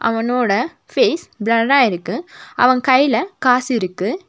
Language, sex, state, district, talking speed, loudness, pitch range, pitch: Tamil, female, Tamil Nadu, Nilgiris, 110 wpm, -16 LUFS, 225-270 Hz, 245 Hz